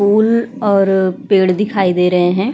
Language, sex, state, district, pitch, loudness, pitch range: Hindi, female, Uttar Pradesh, Budaun, 195 Hz, -14 LUFS, 185-210 Hz